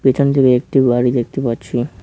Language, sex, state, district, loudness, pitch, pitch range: Bengali, male, West Bengal, Cooch Behar, -15 LUFS, 125 Hz, 120-135 Hz